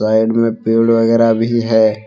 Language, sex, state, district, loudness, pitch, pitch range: Hindi, male, Jharkhand, Deoghar, -13 LUFS, 115 Hz, 110-115 Hz